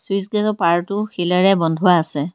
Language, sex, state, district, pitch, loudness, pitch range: Assamese, female, Assam, Kamrup Metropolitan, 180 Hz, -17 LUFS, 170-200 Hz